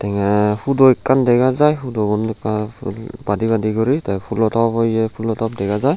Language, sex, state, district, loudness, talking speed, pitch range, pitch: Chakma, male, Tripura, Unakoti, -17 LUFS, 190 wpm, 105-125 Hz, 110 Hz